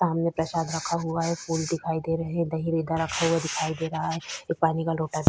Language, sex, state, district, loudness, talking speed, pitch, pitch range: Hindi, female, Bihar, Vaishali, -27 LUFS, 250 wpm, 165 Hz, 160-165 Hz